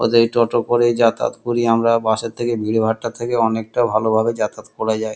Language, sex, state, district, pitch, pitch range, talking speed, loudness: Bengali, male, West Bengal, Kolkata, 115 Hz, 110-120 Hz, 230 wpm, -18 LUFS